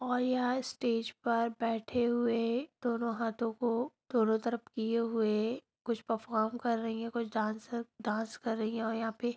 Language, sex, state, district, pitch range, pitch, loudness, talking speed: Hindi, female, Bihar, Gaya, 225-240 Hz, 230 Hz, -34 LUFS, 175 wpm